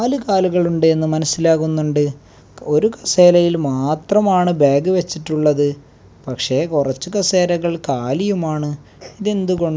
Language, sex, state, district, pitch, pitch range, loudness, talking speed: Malayalam, male, Kerala, Kasaragod, 160 Hz, 145-180 Hz, -17 LUFS, 90 wpm